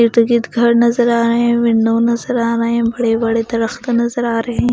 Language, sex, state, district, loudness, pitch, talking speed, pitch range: Hindi, female, Punjab, Pathankot, -15 LUFS, 235 Hz, 240 wpm, 230-235 Hz